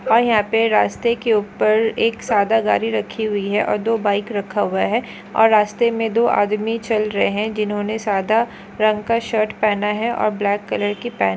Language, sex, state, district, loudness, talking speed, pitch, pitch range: Hindi, female, West Bengal, Kolkata, -19 LUFS, 200 wpm, 215 Hz, 205-225 Hz